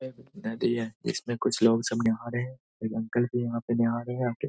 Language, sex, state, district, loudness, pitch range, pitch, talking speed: Hindi, male, Bihar, Saharsa, -29 LUFS, 115-125 Hz, 120 Hz, 265 wpm